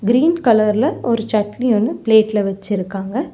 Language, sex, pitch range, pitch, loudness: Tamil, female, 205-245 Hz, 220 Hz, -17 LUFS